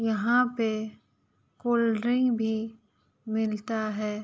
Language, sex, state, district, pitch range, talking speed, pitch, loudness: Hindi, female, Uttar Pradesh, Gorakhpur, 215-235 Hz, 100 wpm, 220 Hz, -27 LUFS